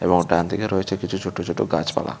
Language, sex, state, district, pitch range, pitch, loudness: Bengali, male, Tripura, West Tripura, 90-95 Hz, 90 Hz, -23 LUFS